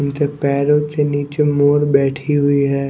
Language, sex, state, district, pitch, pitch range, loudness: Hindi, male, Chhattisgarh, Raipur, 145 Hz, 140-145 Hz, -16 LUFS